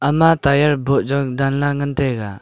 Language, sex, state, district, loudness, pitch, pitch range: Wancho, male, Arunachal Pradesh, Longding, -17 LUFS, 140 Hz, 135-145 Hz